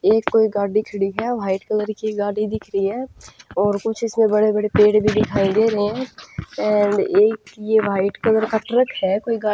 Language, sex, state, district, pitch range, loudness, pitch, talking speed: Hindi, female, Punjab, Pathankot, 205-225 Hz, -19 LUFS, 215 Hz, 200 wpm